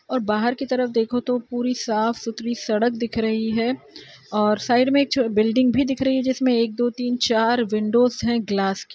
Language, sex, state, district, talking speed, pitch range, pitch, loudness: Hindi, female, Bihar, Araria, 215 wpm, 225-250 Hz, 235 Hz, -21 LUFS